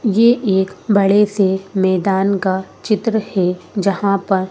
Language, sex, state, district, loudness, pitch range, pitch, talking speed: Hindi, female, Madhya Pradesh, Bhopal, -16 LUFS, 190-210 Hz, 195 Hz, 135 wpm